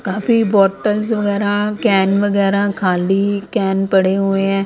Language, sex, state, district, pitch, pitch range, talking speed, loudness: Hindi, female, Punjab, Kapurthala, 200 Hz, 195-205 Hz, 140 wpm, -16 LUFS